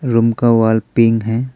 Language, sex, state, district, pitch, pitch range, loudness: Hindi, male, Arunachal Pradesh, Papum Pare, 115 Hz, 115-120 Hz, -14 LUFS